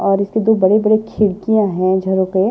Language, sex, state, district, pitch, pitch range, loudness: Hindi, male, Maharashtra, Washim, 200 Hz, 190-215 Hz, -15 LUFS